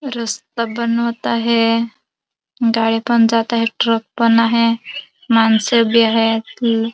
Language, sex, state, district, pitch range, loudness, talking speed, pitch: Marathi, female, Maharashtra, Dhule, 225-235 Hz, -16 LUFS, 110 wpm, 230 Hz